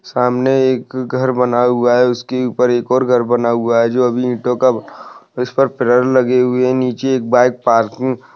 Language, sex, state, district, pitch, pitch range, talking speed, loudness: Hindi, male, West Bengal, Dakshin Dinajpur, 125 Hz, 120-130 Hz, 195 wpm, -15 LUFS